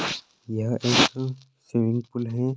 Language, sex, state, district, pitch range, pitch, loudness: Hindi, male, Maharashtra, Sindhudurg, 120-130 Hz, 120 Hz, -25 LUFS